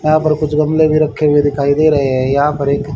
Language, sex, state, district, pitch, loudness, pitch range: Hindi, male, Haryana, Charkhi Dadri, 150 Hz, -13 LUFS, 140-155 Hz